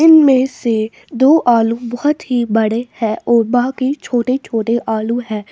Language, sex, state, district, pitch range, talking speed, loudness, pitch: Hindi, female, Bihar, West Champaran, 225-260 Hz, 140 wpm, -15 LUFS, 240 Hz